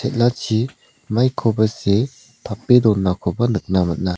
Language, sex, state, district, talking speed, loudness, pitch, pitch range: Garo, male, Meghalaya, South Garo Hills, 85 wpm, -19 LUFS, 110 Hz, 95-120 Hz